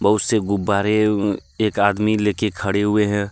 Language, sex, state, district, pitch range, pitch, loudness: Hindi, male, Jharkhand, Deoghar, 100-105 Hz, 105 Hz, -19 LUFS